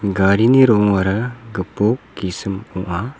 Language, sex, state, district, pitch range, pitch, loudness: Garo, male, Meghalaya, South Garo Hills, 95-115 Hz, 100 Hz, -17 LUFS